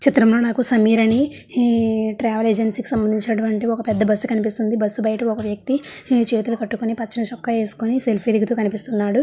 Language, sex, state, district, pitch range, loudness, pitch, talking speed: Telugu, female, Andhra Pradesh, Srikakulam, 220-235 Hz, -19 LUFS, 225 Hz, 155 wpm